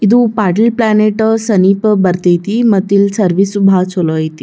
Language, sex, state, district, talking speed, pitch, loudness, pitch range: Kannada, female, Karnataka, Bijapur, 150 wpm, 200 Hz, -11 LUFS, 185-220 Hz